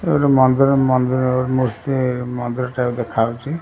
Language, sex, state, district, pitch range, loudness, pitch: Odia, male, Odisha, Khordha, 125-135 Hz, -18 LUFS, 130 Hz